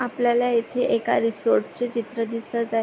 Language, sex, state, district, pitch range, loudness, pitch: Marathi, female, Maharashtra, Pune, 230-245 Hz, -23 LUFS, 235 Hz